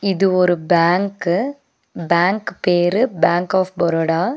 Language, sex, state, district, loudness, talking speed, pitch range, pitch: Tamil, female, Tamil Nadu, Nilgiris, -17 LUFS, 125 wpm, 170-195 Hz, 180 Hz